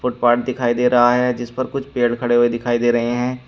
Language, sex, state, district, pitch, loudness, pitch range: Hindi, male, Uttar Pradesh, Shamli, 120 Hz, -18 LUFS, 120-125 Hz